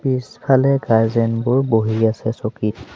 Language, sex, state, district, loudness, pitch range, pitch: Assamese, male, Assam, Sonitpur, -18 LUFS, 110-130 Hz, 115 Hz